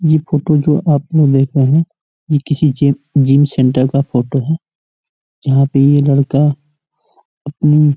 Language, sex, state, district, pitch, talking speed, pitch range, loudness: Hindi, male, Uttar Pradesh, Ghazipur, 145 Hz, 165 wpm, 140-150 Hz, -13 LUFS